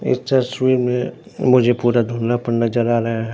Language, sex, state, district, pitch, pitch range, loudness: Hindi, male, Bihar, Katihar, 120 Hz, 115-125 Hz, -18 LUFS